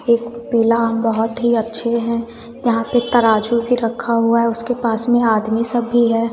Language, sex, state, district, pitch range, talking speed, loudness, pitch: Hindi, female, Bihar, West Champaran, 230-235 Hz, 200 wpm, -17 LUFS, 230 Hz